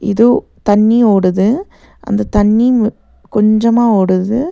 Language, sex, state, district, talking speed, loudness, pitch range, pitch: Tamil, female, Tamil Nadu, Nilgiris, 105 wpm, -12 LUFS, 205-235 Hz, 215 Hz